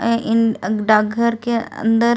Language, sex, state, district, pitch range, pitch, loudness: Hindi, female, Delhi, New Delhi, 220-235 Hz, 230 Hz, -18 LUFS